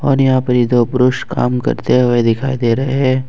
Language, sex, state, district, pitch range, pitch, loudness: Hindi, male, Jharkhand, Ranchi, 115-130 Hz, 125 Hz, -14 LUFS